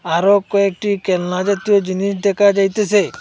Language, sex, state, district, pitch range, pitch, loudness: Bengali, male, Assam, Hailakandi, 190-205 Hz, 200 Hz, -16 LUFS